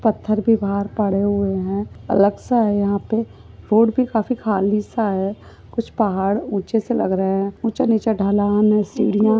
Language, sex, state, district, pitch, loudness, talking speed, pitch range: Hindi, female, Maharashtra, Pune, 210 Hz, -19 LUFS, 180 wpm, 200-225 Hz